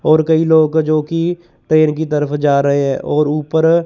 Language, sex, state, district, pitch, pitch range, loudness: Hindi, male, Chandigarh, Chandigarh, 155 Hz, 150-160 Hz, -14 LUFS